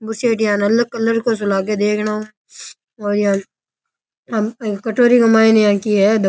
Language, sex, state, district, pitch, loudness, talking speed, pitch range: Rajasthani, male, Rajasthan, Nagaur, 215 Hz, -16 LUFS, 135 wpm, 205-230 Hz